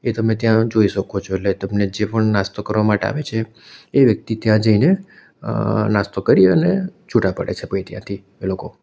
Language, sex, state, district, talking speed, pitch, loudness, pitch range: Gujarati, male, Gujarat, Valsad, 205 wpm, 110 Hz, -18 LUFS, 100-110 Hz